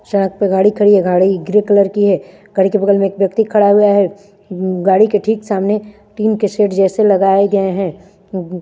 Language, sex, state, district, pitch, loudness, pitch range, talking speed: Hindi, female, Chandigarh, Chandigarh, 200 Hz, -13 LUFS, 190-205 Hz, 225 wpm